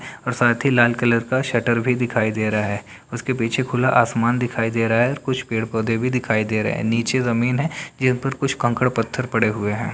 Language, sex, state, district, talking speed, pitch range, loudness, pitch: Hindi, male, Bihar, Lakhisarai, 235 wpm, 115-130 Hz, -20 LUFS, 120 Hz